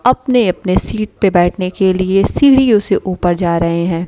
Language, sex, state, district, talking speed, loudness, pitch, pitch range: Hindi, female, Bihar, Kaimur, 190 wpm, -13 LUFS, 185 Hz, 175-215 Hz